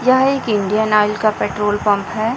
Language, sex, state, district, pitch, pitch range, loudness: Hindi, female, Chhattisgarh, Raipur, 215 Hz, 210-230 Hz, -16 LUFS